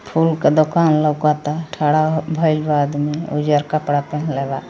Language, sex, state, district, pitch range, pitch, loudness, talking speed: Hindi, female, Uttar Pradesh, Ghazipur, 150-155 Hz, 150 Hz, -18 LUFS, 155 wpm